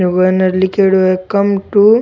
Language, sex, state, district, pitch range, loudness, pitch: Rajasthani, male, Rajasthan, Churu, 185-200 Hz, -12 LUFS, 190 Hz